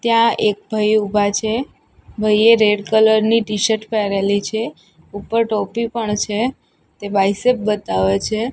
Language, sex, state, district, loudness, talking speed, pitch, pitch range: Gujarati, female, Gujarat, Gandhinagar, -17 LUFS, 140 wpm, 215 Hz, 205-230 Hz